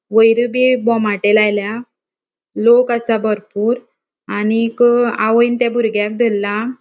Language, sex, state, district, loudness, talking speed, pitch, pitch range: Konkani, female, Goa, North and South Goa, -15 LUFS, 105 wpm, 230 Hz, 210-240 Hz